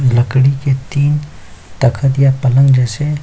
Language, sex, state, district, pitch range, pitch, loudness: Hindi, male, Chhattisgarh, Kabirdham, 125-140 Hz, 135 Hz, -13 LUFS